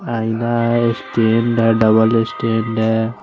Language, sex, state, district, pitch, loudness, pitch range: Hindi, male, Chandigarh, Chandigarh, 115 Hz, -16 LUFS, 110-115 Hz